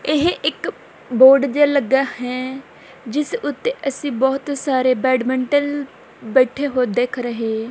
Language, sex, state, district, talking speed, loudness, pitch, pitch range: Punjabi, female, Punjab, Kapurthala, 125 wpm, -18 LUFS, 265 Hz, 250-285 Hz